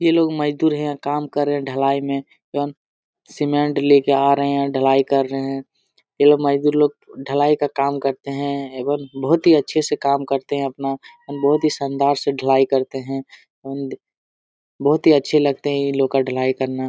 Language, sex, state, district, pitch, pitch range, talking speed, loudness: Hindi, male, Jharkhand, Jamtara, 140 Hz, 135-145 Hz, 200 wpm, -19 LUFS